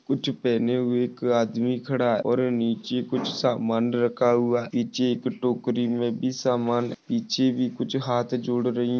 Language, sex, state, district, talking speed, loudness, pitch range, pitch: Hindi, male, Maharashtra, Sindhudurg, 165 wpm, -25 LUFS, 120-125 Hz, 120 Hz